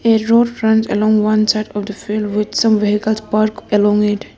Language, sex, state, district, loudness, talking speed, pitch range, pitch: English, female, Arunachal Pradesh, Lower Dibang Valley, -15 LUFS, 190 wpm, 210-220 Hz, 215 Hz